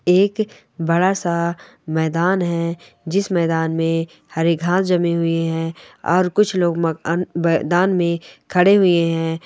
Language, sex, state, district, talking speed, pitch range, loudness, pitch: Hindi, male, Chhattisgarh, Sarguja, 140 wpm, 165-180 Hz, -19 LUFS, 170 Hz